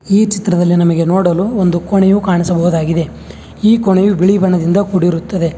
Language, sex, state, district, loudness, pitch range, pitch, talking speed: Kannada, male, Karnataka, Bangalore, -12 LUFS, 170-195 Hz, 180 Hz, 130 wpm